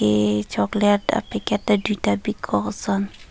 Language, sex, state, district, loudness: Karbi, female, Assam, Karbi Anglong, -22 LUFS